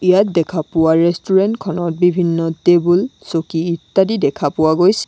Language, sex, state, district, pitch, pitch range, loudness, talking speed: Assamese, female, Assam, Sonitpur, 175 Hz, 165-190 Hz, -16 LUFS, 140 wpm